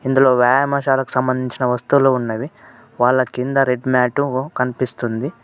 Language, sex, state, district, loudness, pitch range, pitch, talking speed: Telugu, male, Telangana, Mahabubabad, -18 LUFS, 125-135 Hz, 130 Hz, 110 wpm